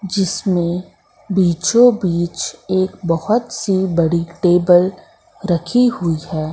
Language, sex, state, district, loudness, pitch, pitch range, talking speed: Hindi, female, Madhya Pradesh, Katni, -17 LUFS, 180 Hz, 170-195 Hz, 100 wpm